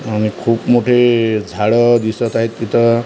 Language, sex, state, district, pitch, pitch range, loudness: Marathi, male, Maharashtra, Washim, 115 Hz, 110-120 Hz, -14 LUFS